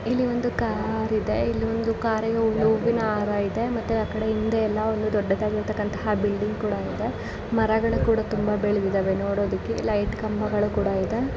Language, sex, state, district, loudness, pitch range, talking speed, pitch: Kannada, female, Karnataka, Dharwad, -25 LUFS, 205-225 Hz, 130 wpm, 215 Hz